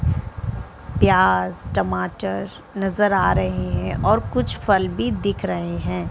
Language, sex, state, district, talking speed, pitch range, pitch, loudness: Hindi, female, Chhattisgarh, Bilaspur, 130 wpm, 90-95 Hz, 90 Hz, -21 LUFS